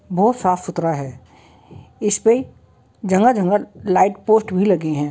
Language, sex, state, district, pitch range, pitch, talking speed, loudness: Hindi, female, Uttar Pradesh, Jalaun, 175-215 Hz, 190 Hz, 130 wpm, -18 LUFS